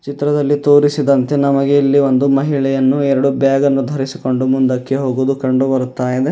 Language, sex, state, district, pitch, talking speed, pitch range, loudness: Kannada, male, Karnataka, Bidar, 135 Hz, 140 wpm, 130-140 Hz, -14 LUFS